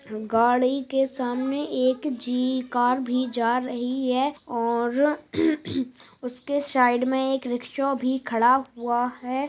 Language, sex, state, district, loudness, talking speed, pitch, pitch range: Hindi, female, Bihar, Bhagalpur, -24 LUFS, 125 wpm, 255 Hz, 245-270 Hz